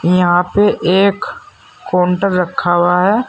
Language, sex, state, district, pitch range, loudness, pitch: Hindi, male, Uttar Pradesh, Saharanpur, 175-195 Hz, -13 LUFS, 180 Hz